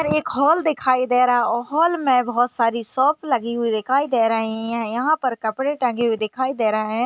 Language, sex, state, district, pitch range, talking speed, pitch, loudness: Hindi, female, Maharashtra, Sindhudurg, 230-275 Hz, 220 wpm, 245 Hz, -20 LUFS